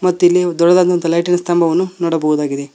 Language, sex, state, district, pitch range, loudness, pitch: Kannada, male, Karnataka, Koppal, 165-180 Hz, -14 LUFS, 175 Hz